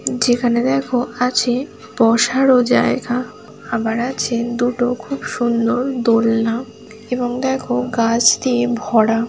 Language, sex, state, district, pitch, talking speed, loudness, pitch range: Bengali, female, West Bengal, Jhargram, 245 Hz, 110 wpm, -17 LUFS, 230-250 Hz